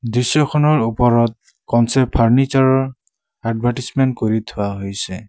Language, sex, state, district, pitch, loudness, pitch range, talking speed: Assamese, male, Assam, Sonitpur, 120 Hz, -17 LUFS, 115-130 Hz, 100 wpm